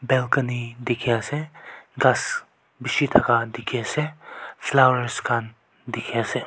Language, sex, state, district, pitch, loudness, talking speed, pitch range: Nagamese, male, Nagaland, Kohima, 125 Hz, -23 LUFS, 110 wpm, 120-135 Hz